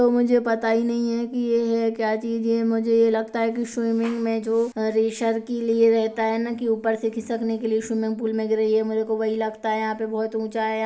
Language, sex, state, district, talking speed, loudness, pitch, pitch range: Hindi, male, Chhattisgarh, Kabirdham, 255 wpm, -23 LUFS, 225 Hz, 220-230 Hz